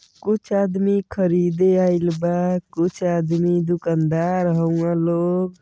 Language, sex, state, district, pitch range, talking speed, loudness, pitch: Bhojpuri, male, Uttar Pradesh, Gorakhpur, 170-185 Hz, 105 wpm, -20 LUFS, 175 Hz